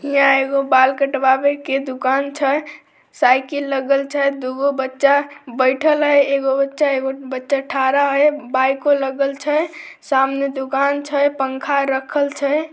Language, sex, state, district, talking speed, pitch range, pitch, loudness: Maithili, female, Bihar, Samastipur, 140 wpm, 265-285 Hz, 275 Hz, -18 LUFS